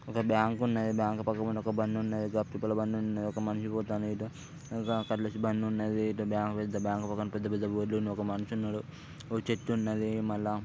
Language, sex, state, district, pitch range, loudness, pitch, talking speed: Telugu, male, Telangana, Karimnagar, 105-110 Hz, -33 LUFS, 110 Hz, 215 wpm